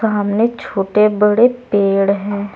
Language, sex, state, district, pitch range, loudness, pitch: Hindi, female, Uttar Pradesh, Saharanpur, 200-215 Hz, -15 LUFS, 205 Hz